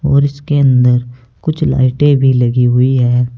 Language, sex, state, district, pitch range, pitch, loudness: Hindi, male, Uttar Pradesh, Saharanpur, 125-140 Hz, 130 Hz, -12 LUFS